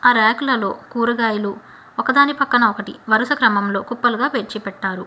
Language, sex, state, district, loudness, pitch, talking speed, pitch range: Telugu, female, Telangana, Hyderabad, -18 LUFS, 230 Hz, 120 wpm, 205-245 Hz